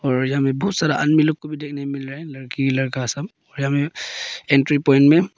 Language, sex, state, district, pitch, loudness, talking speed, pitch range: Hindi, male, Arunachal Pradesh, Papum Pare, 140 Hz, -20 LUFS, 200 wpm, 135-150 Hz